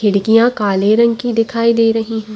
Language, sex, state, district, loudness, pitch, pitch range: Hindi, female, Chhattisgarh, Bastar, -14 LUFS, 225 Hz, 215-230 Hz